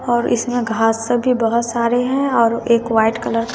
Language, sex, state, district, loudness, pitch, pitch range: Hindi, female, Bihar, West Champaran, -17 LUFS, 235 Hz, 230-245 Hz